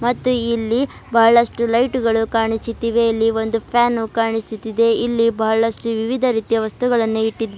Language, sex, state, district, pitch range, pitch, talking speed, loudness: Kannada, female, Karnataka, Bidar, 225-235 Hz, 230 Hz, 135 wpm, -17 LUFS